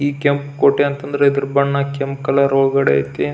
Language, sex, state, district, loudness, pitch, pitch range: Kannada, male, Karnataka, Belgaum, -17 LUFS, 140 Hz, 135-140 Hz